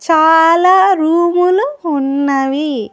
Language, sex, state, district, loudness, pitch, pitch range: Telugu, female, Andhra Pradesh, Annamaya, -12 LUFS, 325 Hz, 280-350 Hz